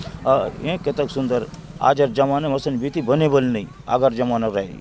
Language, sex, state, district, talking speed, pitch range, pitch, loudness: Halbi, male, Chhattisgarh, Bastar, 160 wpm, 125-145 Hz, 135 Hz, -20 LUFS